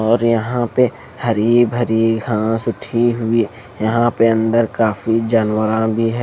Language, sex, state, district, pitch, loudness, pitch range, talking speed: Hindi, male, Maharashtra, Mumbai Suburban, 115 Hz, -17 LUFS, 110-120 Hz, 145 wpm